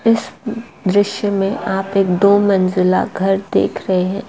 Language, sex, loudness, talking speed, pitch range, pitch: Maithili, female, -16 LUFS, 155 wpm, 190-205 Hz, 195 Hz